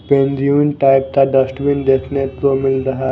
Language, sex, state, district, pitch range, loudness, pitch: Hindi, male, Chhattisgarh, Raipur, 135-140 Hz, -15 LUFS, 135 Hz